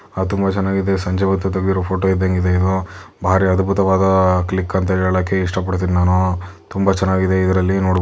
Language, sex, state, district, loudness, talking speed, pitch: Kannada, male, Karnataka, Chamarajanagar, -17 LUFS, 150 wpm, 95 Hz